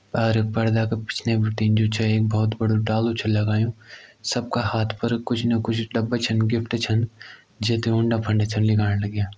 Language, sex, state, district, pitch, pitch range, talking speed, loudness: Garhwali, male, Uttarakhand, Tehri Garhwal, 110 Hz, 110-115 Hz, 185 wpm, -23 LUFS